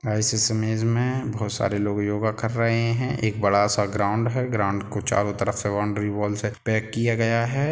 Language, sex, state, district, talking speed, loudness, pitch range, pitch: Hindi, male, Bihar, Sitamarhi, 215 wpm, -24 LUFS, 105-115 Hz, 110 Hz